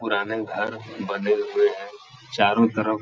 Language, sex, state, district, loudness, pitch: Hindi, male, Uttar Pradesh, Etah, -23 LUFS, 110 Hz